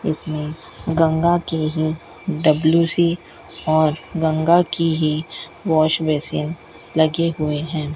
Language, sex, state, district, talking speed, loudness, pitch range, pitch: Hindi, female, Rajasthan, Bikaner, 105 wpm, -20 LUFS, 155-165 Hz, 160 Hz